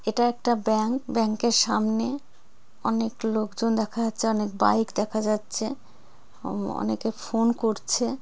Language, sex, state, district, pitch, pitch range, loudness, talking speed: Bengali, female, West Bengal, Jalpaiguri, 225 Hz, 215-230 Hz, -25 LUFS, 140 wpm